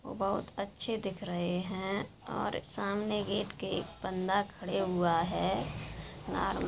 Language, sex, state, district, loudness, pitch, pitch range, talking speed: Hindi, female, Bihar, Vaishali, -35 LUFS, 195 Hz, 180-205 Hz, 135 wpm